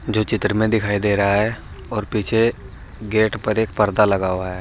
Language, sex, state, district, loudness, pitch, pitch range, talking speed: Hindi, male, Uttar Pradesh, Saharanpur, -19 LUFS, 105 Hz, 100-110 Hz, 210 wpm